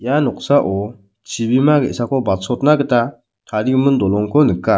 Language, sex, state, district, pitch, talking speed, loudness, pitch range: Garo, male, Meghalaya, West Garo Hills, 125 Hz, 115 wpm, -16 LUFS, 105-140 Hz